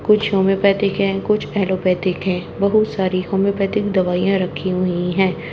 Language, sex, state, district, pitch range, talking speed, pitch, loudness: Hindi, male, Haryana, Jhajjar, 185-200 Hz, 140 wpm, 195 Hz, -18 LUFS